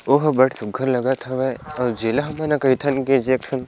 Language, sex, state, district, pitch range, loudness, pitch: Chhattisgarhi, male, Chhattisgarh, Sarguja, 125-140 Hz, -20 LUFS, 130 Hz